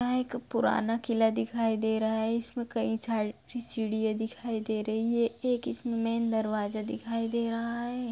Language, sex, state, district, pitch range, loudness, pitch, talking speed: Hindi, female, Bihar, Begusarai, 220-235 Hz, -30 LUFS, 230 Hz, 185 wpm